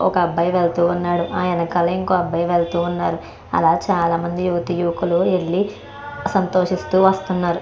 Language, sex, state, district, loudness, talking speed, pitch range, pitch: Telugu, female, Andhra Pradesh, Krishna, -19 LUFS, 95 wpm, 170-185 Hz, 175 Hz